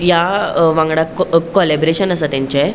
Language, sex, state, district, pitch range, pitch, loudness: Konkani, female, Goa, North and South Goa, 155-175 Hz, 165 Hz, -14 LUFS